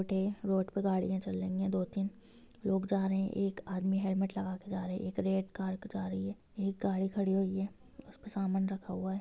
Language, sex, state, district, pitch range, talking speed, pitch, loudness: Hindi, female, Bihar, Gopalganj, 190-195 Hz, 255 wpm, 195 Hz, -35 LUFS